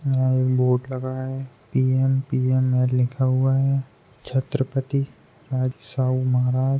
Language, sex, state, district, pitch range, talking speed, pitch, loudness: Hindi, male, Maharashtra, Pune, 130-135 Hz, 140 wpm, 130 Hz, -22 LUFS